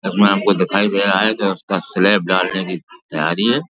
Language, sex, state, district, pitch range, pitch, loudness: Hindi, male, Uttar Pradesh, Jalaun, 95-105 Hz, 100 Hz, -16 LUFS